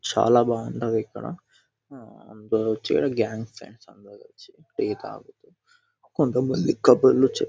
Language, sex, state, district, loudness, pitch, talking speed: Telugu, male, Telangana, Nalgonda, -23 LUFS, 120 Hz, 120 wpm